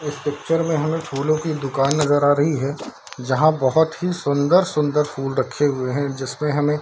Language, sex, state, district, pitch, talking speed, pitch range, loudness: Hindi, male, Bihar, Darbhanga, 145 Hz, 195 wpm, 135-155 Hz, -20 LUFS